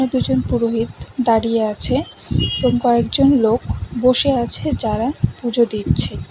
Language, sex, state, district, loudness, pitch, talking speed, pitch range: Bengali, female, West Bengal, Cooch Behar, -18 LUFS, 235 Hz, 115 wpm, 225-255 Hz